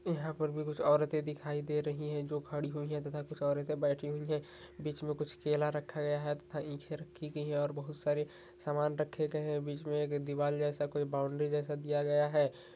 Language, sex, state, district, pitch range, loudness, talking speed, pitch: Hindi, male, Uttar Pradesh, Hamirpur, 145-150 Hz, -36 LUFS, 230 wpm, 150 Hz